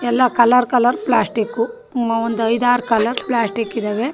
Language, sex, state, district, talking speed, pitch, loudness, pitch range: Kannada, female, Karnataka, Shimoga, 175 wpm, 235 Hz, -17 LUFS, 230-245 Hz